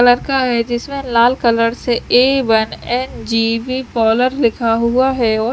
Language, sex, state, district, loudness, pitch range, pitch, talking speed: Hindi, female, Chandigarh, Chandigarh, -15 LUFS, 230-255 Hz, 240 Hz, 150 wpm